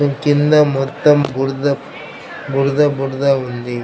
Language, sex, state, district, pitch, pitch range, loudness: Telugu, male, Andhra Pradesh, Krishna, 140 Hz, 135-145 Hz, -16 LUFS